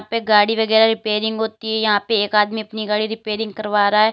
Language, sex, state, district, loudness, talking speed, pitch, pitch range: Hindi, female, Uttar Pradesh, Lalitpur, -18 LUFS, 235 wpm, 220 Hz, 210-220 Hz